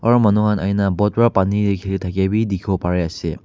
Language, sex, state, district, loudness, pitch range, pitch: Nagamese, male, Nagaland, Kohima, -18 LUFS, 95-105 Hz, 100 Hz